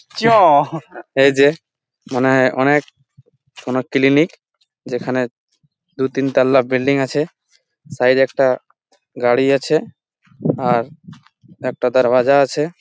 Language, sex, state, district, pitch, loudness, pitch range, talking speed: Bengali, male, West Bengal, Malda, 135 Hz, -16 LUFS, 130-145 Hz, 100 wpm